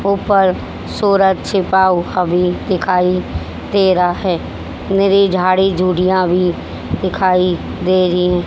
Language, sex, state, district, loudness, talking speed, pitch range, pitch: Hindi, female, Haryana, Jhajjar, -15 LUFS, 120 wpm, 180-195 Hz, 185 Hz